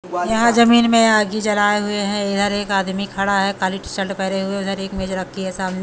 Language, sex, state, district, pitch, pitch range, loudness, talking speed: Hindi, female, Delhi, New Delhi, 195 Hz, 190-205 Hz, -18 LUFS, 235 wpm